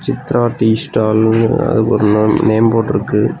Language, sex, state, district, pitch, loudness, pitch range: Tamil, male, Tamil Nadu, Nilgiris, 110 Hz, -13 LUFS, 110-120 Hz